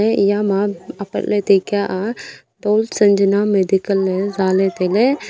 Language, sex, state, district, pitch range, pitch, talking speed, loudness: Wancho, female, Arunachal Pradesh, Longding, 195-210 Hz, 200 Hz, 135 wpm, -17 LUFS